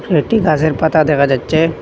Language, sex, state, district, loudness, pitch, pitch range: Bengali, male, Assam, Hailakandi, -14 LUFS, 155 Hz, 150-160 Hz